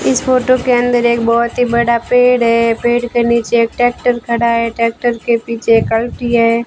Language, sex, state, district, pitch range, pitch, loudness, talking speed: Hindi, female, Rajasthan, Bikaner, 230-245 Hz, 235 Hz, -13 LUFS, 190 wpm